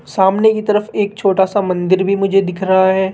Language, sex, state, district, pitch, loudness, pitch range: Hindi, female, Rajasthan, Jaipur, 195 Hz, -14 LUFS, 190-205 Hz